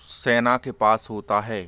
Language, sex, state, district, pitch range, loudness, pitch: Hindi, male, Bihar, Vaishali, 105-120 Hz, -22 LUFS, 110 Hz